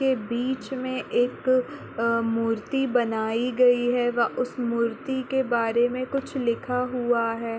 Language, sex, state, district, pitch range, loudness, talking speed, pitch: Hindi, female, Chhattisgarh, Korba, 230-255 Hz, -25 LUFS, 140 wpm, 245 Hz